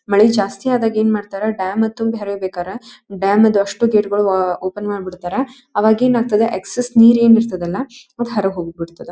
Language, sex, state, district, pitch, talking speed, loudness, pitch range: Kannada, female, Karnataka, Dharwad, 210 Hz, 175 wpm, -16 LUFS, 195-230 Hz